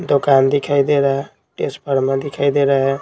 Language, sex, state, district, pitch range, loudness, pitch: Hindi, male, Bihar, Patna, 135-140 Hz, -17 LUFS, 140 Hz